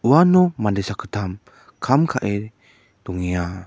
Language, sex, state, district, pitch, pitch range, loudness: Garo, male, Meghalaya, West Garo Hills, 105 Hz, 95-135 Hz, -20 LUFS